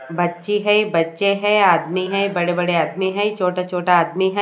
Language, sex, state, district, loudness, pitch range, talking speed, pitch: Hindi, female, Odisha, Nuapada, -18 LUFS, 175-200 Hz, 165 wpm, 180 Hz